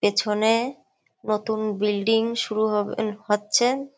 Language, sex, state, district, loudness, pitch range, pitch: Bengali, female, West Bengal, Kolkata, -23 LUFS, 210-225 Hz, 215 Hz